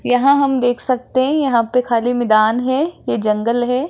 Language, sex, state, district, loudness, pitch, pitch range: Hindi, female, Rajasthan, Jaipur, -16 LUFS, 250 Hz, 235-265 Hz